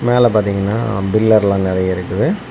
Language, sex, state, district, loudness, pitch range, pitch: Tamil, male, Tamil Nadu, Kanyakumari, -15 LUFS, 95-115 Hz, 105 Hz